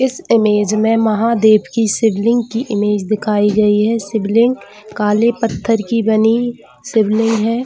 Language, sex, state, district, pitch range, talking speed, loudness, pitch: Hindi, female, Chhattisgarh, Bilaspur, 210-230 Hz, 140 wpm, -15 LUFS, 220 Hz